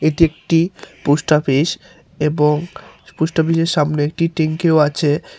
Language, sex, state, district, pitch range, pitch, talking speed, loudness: Bengali, male, Tripura, Unakoti, 150-165 Hz, 155 Hz, 145 wpm, -17 LUFS